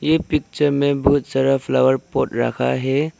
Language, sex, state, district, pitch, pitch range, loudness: Hindi, male, Arunachal Pradesh, Lower Dibang Valley, 140 Hz, 135-150 Hz, -19 LUFS